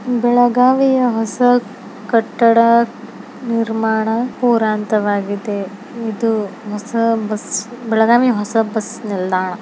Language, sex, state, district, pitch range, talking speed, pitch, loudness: Kannada, female, Karnataka, Belgaum, 215-240 Hz, 80 wpm, 225 Hz, -16 LUFS